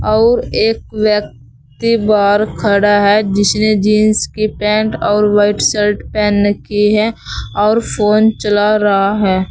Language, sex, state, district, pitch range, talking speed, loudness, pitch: Hindi, female, Uttar Pradesh, Saharanpur, 205-215 Hz, 130 wpm, -13 LUFS, 210 Hz